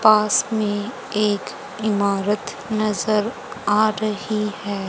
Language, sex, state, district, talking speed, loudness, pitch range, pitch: Hindi, female, Haryana, Charkhi Dadri, 100 wpm, -21 LUFS, 205-215 Hz, 210 Hz